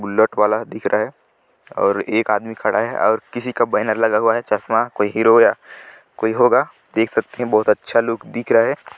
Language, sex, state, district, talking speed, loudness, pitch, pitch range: Hindi, male, Chhattisgarh, Sarguja, 225 wpm, -18 LUFS, 110 Hz, 105-115 Hz